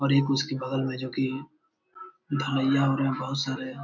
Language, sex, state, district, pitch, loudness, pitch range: Hindi, male, Bihar, Jamui, 135 Hz, -27 LUFS, 130-145 Hz